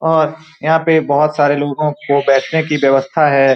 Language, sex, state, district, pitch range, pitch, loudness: Hindi, male, Bihar, Saran, 140-160 Hz, 150 Hz, -14 LUFS